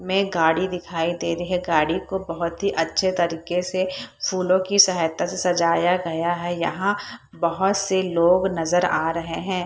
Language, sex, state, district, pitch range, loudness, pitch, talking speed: Hindi, female, Bihar, Purnia, 170-185 Hz, -22 LUFS, 180 Hz, 175 wpm